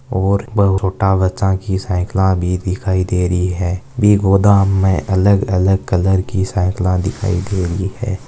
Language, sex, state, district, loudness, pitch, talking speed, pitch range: Marwari, male, Rajasthan, Nagaur, -16 LUFS, 95 Hz, 160 wpm, 90-100 Hz